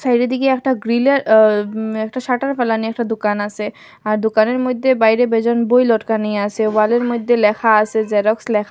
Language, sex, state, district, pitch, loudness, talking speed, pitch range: Bengali, female, Assam, Hailakandi, 225 Hz, -16 LUFS, 180 wpm, 215-245 Hz